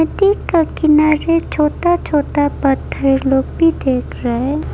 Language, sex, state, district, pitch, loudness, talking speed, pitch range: Hindi, female, Arunachal Pradesh, Lower Dibang Valley, 300 Hz, -15 LUFS, 140 wpm, 270-330 Hz